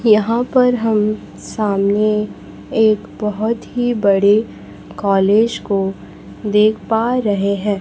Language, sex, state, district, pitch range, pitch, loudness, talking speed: Hindi, female, Chhattisgarh, Raipur, 200-225 Hz, 210 Hz, -16 LUFS, 110 wpm